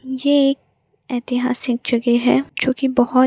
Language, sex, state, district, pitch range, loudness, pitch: Hindi, female, Maharashtra, Pune, 245-265 Hz, -19 LUFS, 255 Hz